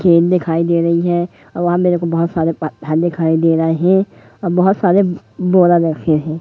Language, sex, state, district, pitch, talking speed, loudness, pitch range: Hindi, male, Madhya Pradesh, Katni, 170 Hz, 195 wpm, -15 LUFS, 165-180 Hz